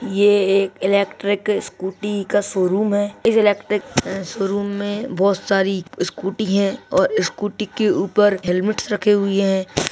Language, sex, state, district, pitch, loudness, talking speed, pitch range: Hindi, male, Chhattisgarh, Kabirdham, 200 Hz, -19 LUFS, 140 wpm, 195-205 Hz